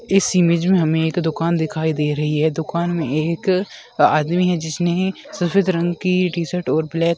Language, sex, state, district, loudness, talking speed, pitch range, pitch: Hindi, female, West Bengal, Dakshin Dinajpur, -19 LUFS, 200 wpm, 160-180 Hz, 170 Hz